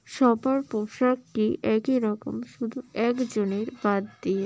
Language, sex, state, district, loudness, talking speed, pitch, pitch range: Bengali, female, West Bengal, Malda, -26 LUFS, 105 wpm, 235 Hz, 210-255 Hz